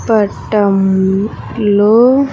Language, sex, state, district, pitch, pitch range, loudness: Telugu, female, Andhra Pradesh, Sri Satya Sai, 210 Hz, 195-225 Hz, -12 LUFS